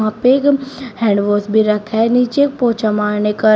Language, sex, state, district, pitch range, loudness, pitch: Hindi, female, Uttar Pradesh, Shamli, 210-255 Hz, -15 LUFS, 220 Hz